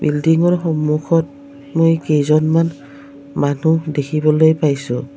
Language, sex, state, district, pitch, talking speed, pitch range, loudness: Assamese, female, Assam, Kamrup Metropolitan, 155 Hz, 80 wpm, 140-160 Hz, -16 LUFS